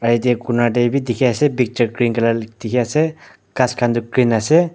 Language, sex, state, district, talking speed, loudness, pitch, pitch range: Nagamese, male, Nagaland, Dimapur, 190 wpm, -17 LUFS, 120 Hz, 115-125 Hz